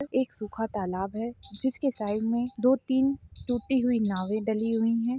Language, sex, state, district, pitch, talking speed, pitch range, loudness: Hindi, female, Jharkhand, Sahebganj, 230 Hz, 175 wpm, 215-255 Hz, -28 LUFS